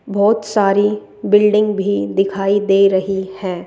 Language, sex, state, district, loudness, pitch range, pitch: Hindi, female, Rajasthan, Jaipur, -15 LUFS, 195-210 Hz, 200 Hz